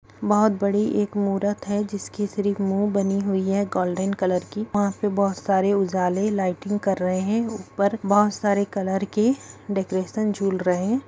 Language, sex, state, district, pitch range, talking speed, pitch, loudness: Hindi, female, Jharkhand, Sahebganj, 195-205 Hz, 175 wpm, 200 Hz, -23 LUFS